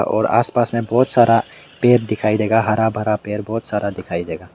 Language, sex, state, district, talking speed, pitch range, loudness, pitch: Hindi, male, Meghalaya, West Garo Hills, 200 wpm, 105-120 Hz, -18 LUFS, 110 Hz